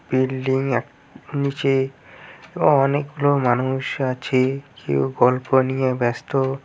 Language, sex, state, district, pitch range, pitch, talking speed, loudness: Bengali, male, West Bengal, Cooch Behar, 130-140 Hz, 130 Hz, 90 wpm, -21 LUFS